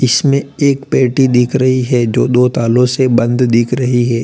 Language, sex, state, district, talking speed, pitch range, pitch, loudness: Hindi, male, Uttar Pradesh, Lalitpur, 200 wpm, 120-130 Hz, 125 Hz, -12 LUFS